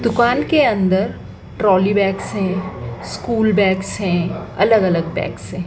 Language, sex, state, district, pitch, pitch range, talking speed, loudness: Hindi, female, Madhya Pradesh, Dhar, 195 Hz, 185-215 Hz, 125 wpm, -17 LUFS